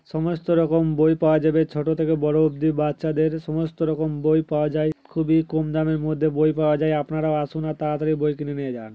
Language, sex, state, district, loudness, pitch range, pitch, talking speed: Bengali, male, West Bengal, Paschim Medinipur, -22 LUFS, 150-160 Hz, 155 Hz, 200 wpm